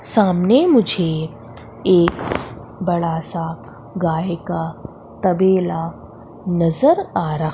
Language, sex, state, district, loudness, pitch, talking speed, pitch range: Hindi, female, Madhya Pradesh, Umaria, -18 LUFS, 170 Hz, 85 wpm, 160-185 Hz